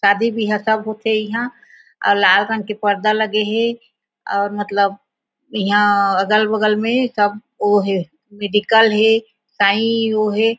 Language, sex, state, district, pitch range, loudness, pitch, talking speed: Chhattisgarhi, female, Chhattisgarh, Raigarh, 205-225 Hz, -17 LUFS, 215 Hz, 140 wpm